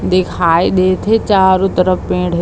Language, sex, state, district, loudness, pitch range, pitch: Chhattisgarhi, female, Chhattisgarh, Bilaspur, -13 LUFS, 180-190 Hz, 185 Hz